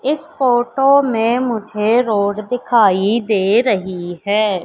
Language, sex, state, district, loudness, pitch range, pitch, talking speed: Hindi, female, Madhya Pradesh, Katni, -16 LUFS, 200-245 Hz, 225 Hz, 115 wpm